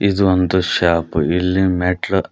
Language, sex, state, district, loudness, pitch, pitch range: Kannada, male, Karnataka, Koppal, -17 LUFS, 90 Hz, 90-95 Hz